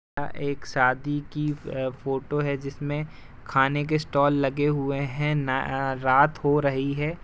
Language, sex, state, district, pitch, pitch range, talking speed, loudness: Hindi, male, Uttar Pradesh, Jalaun, 140 Hz, 135-145 Hz, 140 wpm, -25 LUFS